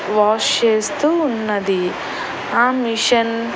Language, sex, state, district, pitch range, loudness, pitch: Telugu, female, Andhra Pradesh, Annamaya, 210-240 Hz, -17 LUFS, 225 Hz